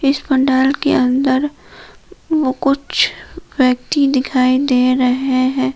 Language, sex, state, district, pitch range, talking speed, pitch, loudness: Hindi, female, Jharkhand, Palamu, 255-275 Hz, 115 wpm, 265 Hz, -15 LUFS